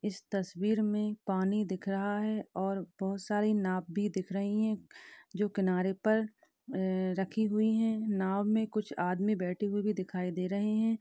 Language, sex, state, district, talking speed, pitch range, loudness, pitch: Hindi, female, Uttar Pradesh, Hamirpur, 180 wpm, 190-215 Hz, -33 LUFS, 205 Hz